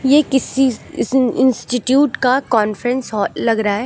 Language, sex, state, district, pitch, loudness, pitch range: Hindi, female, Uttar Pradesh, Lucknow, 255 Hz, -16 LUFS, 230-265 Hz